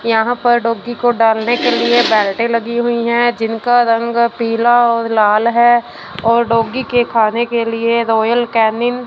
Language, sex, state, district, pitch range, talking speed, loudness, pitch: Hindi, female, Punjab, Fazilka, 230-240 Hz, 170 wpm, -14 LUFS, 235 Hz